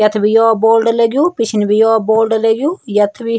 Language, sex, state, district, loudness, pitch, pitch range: Garhwali, male, Uttarakhand, Tehri Garhwal, -13 LUFS, 225 Hz, 215-230 Hz